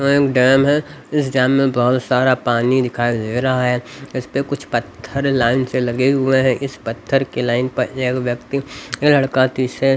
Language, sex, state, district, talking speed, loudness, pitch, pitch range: Hindi, male, Haryana, Rohtak, 205 wpm, -17 LUFS, 130 Hz, 125-135 Hz